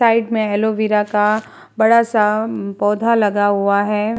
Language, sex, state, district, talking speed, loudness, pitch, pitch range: Hindi, female, Bihar, Vaishali, 145 wpm, -16 LUFS, 210 Hz, 205-220 Hz